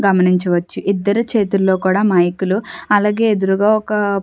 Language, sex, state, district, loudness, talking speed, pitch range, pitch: Telugu, female, Andhra Pradesh, Chittoor, -16 LUFS, 140 wpm, 190-210 Hz, 200 Hz